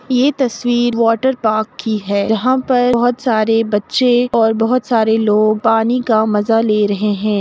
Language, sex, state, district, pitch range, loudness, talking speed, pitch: Hindi, female, Uttar Pradesh, Jalaun, 215-245 Hz, -14 LUFS, 160 wpm, 225 Hz